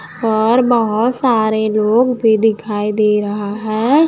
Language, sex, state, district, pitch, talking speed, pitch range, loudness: Hindi, female, Chhattisgarh, Raipur, 220 Hz, 130 wpm, 210-235 Hz, -15 LUFS